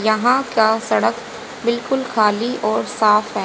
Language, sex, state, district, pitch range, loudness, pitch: Hindi, female, Haryana, Rohtak, 215-245 Hz, -18 LUFS, 225 Hz